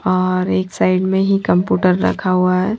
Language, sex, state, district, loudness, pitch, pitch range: Hindi, female, Haryana, Jhajjar, -16 LUFS, 185 Hz, 180-190 Hz